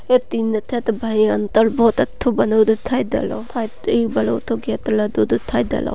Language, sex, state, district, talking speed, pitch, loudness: Hindi, female, Maharashtra, Sindhudurg, 50 wpm, 220 Hz, -19 LUFS